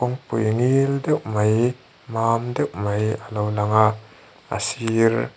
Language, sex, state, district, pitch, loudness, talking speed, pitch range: Mizo, male, Mizoram, Aizawl, 115 Hz, -22 LUFS, 125 wpm, 110-125 Hz